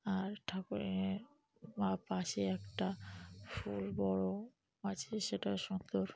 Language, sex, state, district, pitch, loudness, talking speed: Bengali, female, West Bengal, North 24 Parganas, 100 Hz, -40 LUFS, 105 wpm